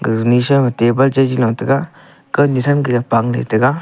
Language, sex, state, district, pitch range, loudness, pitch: Wancho, male, Arunachal Pradesh, Longding, 120-135 Hz, -15 LUFS, 125 Hz